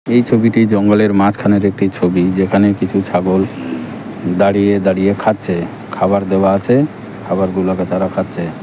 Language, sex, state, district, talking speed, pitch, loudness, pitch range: Bengali, male, West Bengal, Cooch Behar, 125 wpm, 100 Hz, -14 LUFS, 95-105 Hz